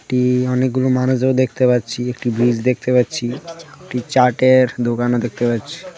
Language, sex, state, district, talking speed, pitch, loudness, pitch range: Bengali, male, Tripura, West Tripura, 150 wpm, 125 Hz, -17 LUFS, 120-130 Hz